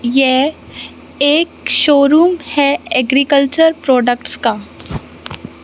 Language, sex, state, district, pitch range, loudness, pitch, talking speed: Hindi, male, Madhya Pradesh, Katni, 255-300 Hz, -13 LUFS, 280 Hz, 75 wpm